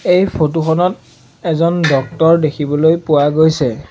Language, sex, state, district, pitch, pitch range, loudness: Assamese, male, Assam, Sonitpur, 160 Hz, 145-170 Hz, -14 LUFS